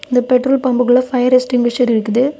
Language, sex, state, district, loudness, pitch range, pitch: Tamil, female, Tamil Nadu, Kanyakumari, -14 LUFS, 245-255 Hz, 250 Hz